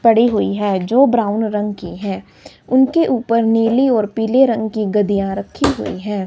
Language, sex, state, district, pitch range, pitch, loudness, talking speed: Hindi, male, Himachal Pradesh, Shimla, 205-235 Hz, 220 Hz, -16 LUFS, 180 wpm